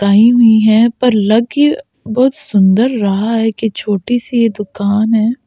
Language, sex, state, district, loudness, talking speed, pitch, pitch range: Hindi, female, Delhi, New Delhi, -12 LUFS, 175 wpm, 225 Hz, 210-240 Hz